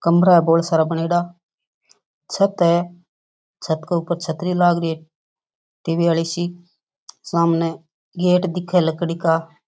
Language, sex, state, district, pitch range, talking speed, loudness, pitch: Rajasthani, female, Rajasthan, Nagaur, 165-175 Hz, 130 wpm, -19 LUFS, 170 Hz